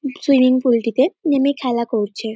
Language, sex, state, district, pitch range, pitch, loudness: Bengali, male, West Bengal, North 24 Parganas, 230-275 Hz, 255 Hz, -17 LUFS